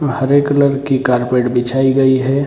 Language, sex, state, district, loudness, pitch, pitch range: Hindi, male, Bihar, Purnia, -14 LUFS, 135 Hz, 125-140 Hz